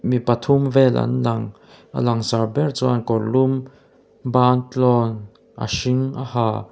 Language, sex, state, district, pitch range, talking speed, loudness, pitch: Mizo, male, Mizoram, Aizawl, 115-130 Hz, 135 wpm, -20 LUFS, 125 Hz